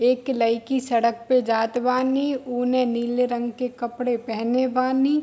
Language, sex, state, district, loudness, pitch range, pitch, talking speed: Hindi, female, Bihar, Darbhanga, -23 LUFS, 235-255 Hz, 250 Hz, 150 wpm